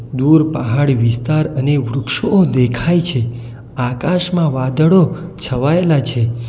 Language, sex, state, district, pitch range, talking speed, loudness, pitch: Gujarati, male, Gujarat, Valsad, 125-160 Hz, 100 wpm, -15 LUFS, 140 Hz